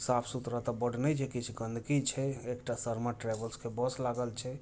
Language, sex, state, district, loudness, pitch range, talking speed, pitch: Hindi, male, Bihar, Muzaffarpur, -35 LUFS, 120-125 Hz, 210 wpm, 120 Hz